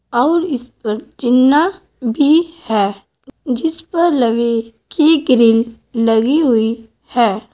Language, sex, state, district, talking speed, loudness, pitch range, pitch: Hindi, female, Uttar Pradesh, Saharanpur, 110 wpm, -15 LUFS, 230-310 Hz, 245 Hz